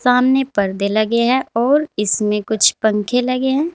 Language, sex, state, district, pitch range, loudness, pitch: Hindi, female, Uttar Pradesh, Saharanpur, 210-260 Hz, -16 LUFS, 235 Hz